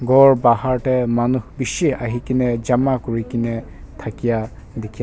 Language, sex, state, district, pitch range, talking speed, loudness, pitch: Nagamese, male, Nagaland, Kohima, 115-130 Hz, 165 wpm, -19 LUFS, 120 Hz